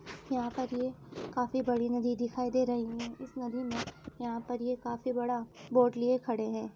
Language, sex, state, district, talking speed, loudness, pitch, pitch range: Hindi, female, Uttar Pradesh, Muzaffarnagar, 195 wpm, -33 LUFS, 245 Hz, 240-255 Hz